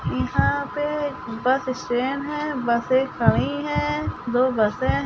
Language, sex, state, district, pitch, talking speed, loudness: Hindi, female, Chhattisgarh, Sukma, 250 Hz, 130 wpm, -23 LUFS